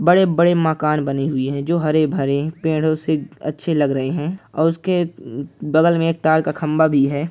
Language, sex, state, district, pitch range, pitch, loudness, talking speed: Hindi, male, Chhattisgarh, Kabirdham, 145-165 Hz, 155 Hz, -19 LUFS, 190 wpm